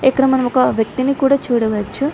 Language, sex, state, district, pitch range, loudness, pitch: Telugu, female, Andhra Pradesh, Chittoor, 235-275 Hz, -16 LUFS, 260 Hz